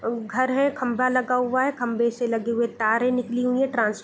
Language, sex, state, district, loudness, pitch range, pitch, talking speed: Hindi, female, Bihar, Gopalganj, -23 LUFS, 235-255 Hz, 245 Hz, 250 wpm